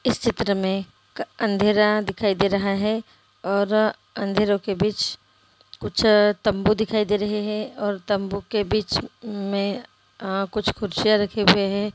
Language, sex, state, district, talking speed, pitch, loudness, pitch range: Hindi, female, Bihar, Gopalganj, 145 wpm, 205 Hz, -22 LUFS, 195-210 Hz